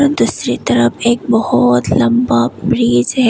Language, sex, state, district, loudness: Hindi, female, Tripura, West Tripura, -13 LUFS